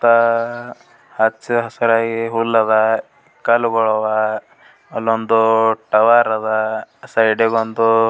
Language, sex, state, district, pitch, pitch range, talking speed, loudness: Kannada, male, Karnataka, Gulbarga, 115 Hz, 110-115 Hz, 95 wpm, -16 LUFS